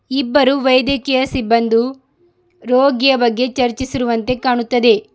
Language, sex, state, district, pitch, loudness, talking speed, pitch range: Kannada, female, Karnataka, Bidar, 260 Hz, -15 LUFS, 80 wpm, 245-270 Hz